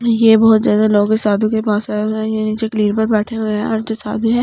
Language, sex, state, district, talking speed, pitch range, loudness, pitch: Hindi, female, Delhi, New Delhi, 310 wpm, 215-220 Hz, -15 LUFS, 220 Hz